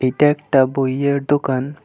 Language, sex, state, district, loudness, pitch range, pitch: Bengali, male, West Bengal, Alipurduar, -17 LUFS, 130-145 Hz, 140 Hz